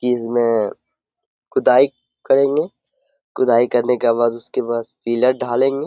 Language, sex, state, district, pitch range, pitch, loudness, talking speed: Hindi, male, Bihar, Saharsa, 115-135 Hz, 125 Hz, -18 LUFS, 110 wpm